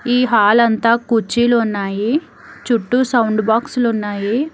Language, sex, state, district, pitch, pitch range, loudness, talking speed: Telugu, female, Telangana, Hyderabad, 235 Hz, 215-245 Hz, -16 LUFS, 120 wpm